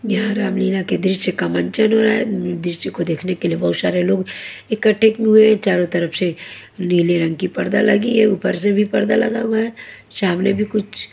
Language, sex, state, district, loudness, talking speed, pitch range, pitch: Hindi, female, Haryana, Jhajjar, -17 LUFS, 210 wpm, 180-215 Hz, 195 Hz